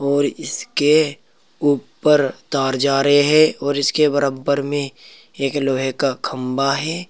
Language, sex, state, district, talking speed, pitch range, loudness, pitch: Hindi, male, Uttar Pradesh, Saharanpur, 135 wpm, 135-145 Hz, -18 LUFS, 140 Hz